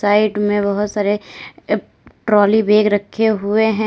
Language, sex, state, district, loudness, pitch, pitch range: Hindi, female, Uttar Pradesh, Lalitpur, -16 LUFS, 210 Hz, 205-215 Hz